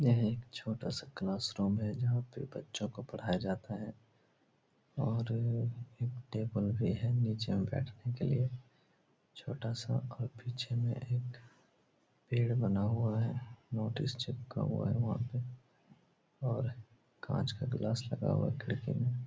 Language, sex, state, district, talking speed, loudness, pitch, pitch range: Hindi, male, Bihar, Supaul, 135 wpm, -36 LUFS, 120 Hz, 110-125 Hz